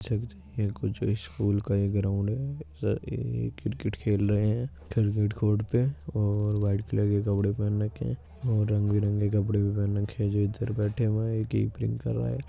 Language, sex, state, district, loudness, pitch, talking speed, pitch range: Hindi, male, Uttar Pradesh, Muzaffarnagar, -28 LUFS, 105 Hz, 180 wpm, 100-110 Hz